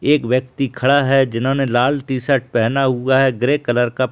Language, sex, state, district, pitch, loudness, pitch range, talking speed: Hindi, male, Jharkhand, Jamtara, 130 Hz, -17 LUFS, 125-135 Hz, 205 wpm